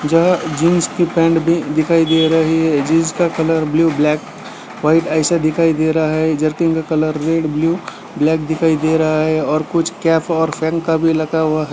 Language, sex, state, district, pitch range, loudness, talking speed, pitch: Hindi, male, Bihar, Gaya, 155-165 Hz, -15 LUFS, 205 wpm, 160 Hz